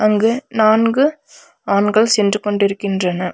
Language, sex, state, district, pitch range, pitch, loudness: Tamil, female, Tamil Nadu, Nilgiris, 200-235 Hz, 215 Hz, -16 LUFS